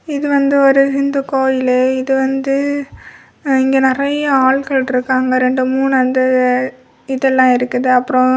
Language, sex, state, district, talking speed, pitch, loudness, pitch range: Tamil, female, Tamil Nadu, Kanyakumari, 120 wpm, 265 Hz, -14 LUFS, 255-275 Hz